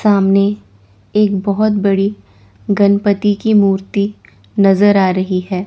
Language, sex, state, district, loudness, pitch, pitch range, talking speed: Hindi, female, Chandigarh, Chandigarh, -14 LUFS, 200 Hz, 190-205 Hz, 115 wpm